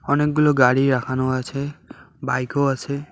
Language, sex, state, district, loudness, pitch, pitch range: Bengali, male, West Bengal, Alipurduar, -20 LUFS, 135 Hz, 130-145 Hz